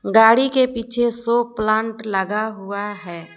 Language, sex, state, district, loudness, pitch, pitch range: Hindi, female, Jharkhand, Palamu, -19 LUFS, 220 Hz, 205-235 Hz